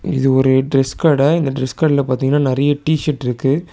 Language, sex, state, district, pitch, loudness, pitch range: Tamil, male, Tamil Nadu, Chennai, 140 Hz, -16 LUFS, 130-150 Hz